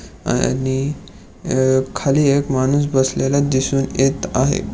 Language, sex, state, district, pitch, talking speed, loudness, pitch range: Marathi, male, Maharashtra, Pune, 135 Hz, 115 wpm, -18 LUFS, 130-140 Hz